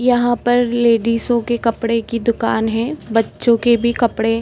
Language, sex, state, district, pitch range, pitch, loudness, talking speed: Hindi, female, Uttar Pradesh, Etah, 230-240 Hz, 235 Hz, -17 LUFS, 175 wpm